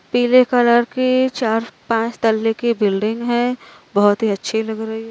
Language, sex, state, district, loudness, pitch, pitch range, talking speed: Hindi, female, Uttar Pradesh, Varanasi, -17 LUFS, 230 Hz, 220-245 Hz, 175 wpm